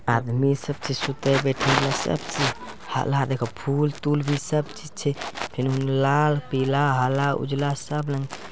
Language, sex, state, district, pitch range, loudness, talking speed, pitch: Angika, male, Bihar, Bhagalpur, 135-145 Hz, -24 LUFS, 170 wpm, 140 Hz